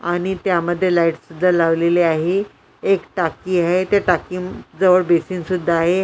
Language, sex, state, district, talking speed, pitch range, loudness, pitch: Marathi, female, Maharashtra, Washim, 150 wpm, 170-185 Hz, -18 LUFS, 180 Hz